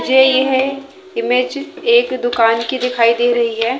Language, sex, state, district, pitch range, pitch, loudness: Hindi, female, Haryana, Jhajjar, 240-275 Hz, 255 Hz, -15 LUFS